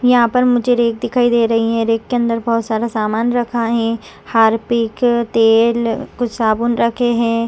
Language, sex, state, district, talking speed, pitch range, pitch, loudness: Hindi, female, Chhattisgarh, Raigarh, 185 wpm, 225-240 Hz, 235 Hz, -16 LUFS